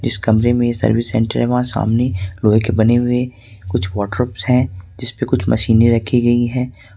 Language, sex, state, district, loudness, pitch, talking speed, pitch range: Hindi, male, Jharkhand, Ranchi, -16 LUFS, 115 Hz, 180 wpm, 105-125 Hz